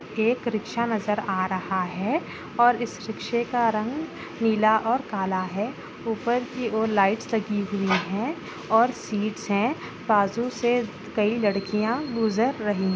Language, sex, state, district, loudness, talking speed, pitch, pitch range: Hindi, female, Bihar, Bhagalpur, -25 LUFS, 150 wpm, 220 Hz, 205-235 Hz